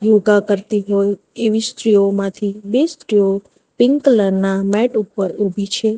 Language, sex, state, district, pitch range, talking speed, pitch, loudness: Gujarati, female, Gujarat, Valsad, 200-220 Hz, 150 wpm, 205 Hz, -16 LUFS